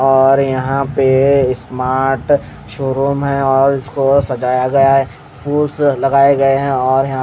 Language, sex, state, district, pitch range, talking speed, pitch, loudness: Hindi, male, Odisha, Khordha, 130-140 Hz, 160 wpm, 135 Hz, -14 LUFS